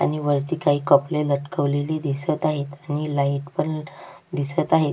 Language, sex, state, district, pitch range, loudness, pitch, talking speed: Marathi, female, Maharashtra, Sindhudurg, 140-155 Hz, -23 LUFS, 145 Hz, 145 wpm